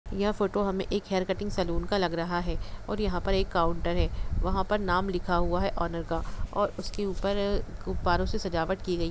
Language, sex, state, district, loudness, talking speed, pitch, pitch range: Hindi, female, Bihar, Gopalganj, -30 LUFS, 230 wpm, 190 Hz, 175-200 Hz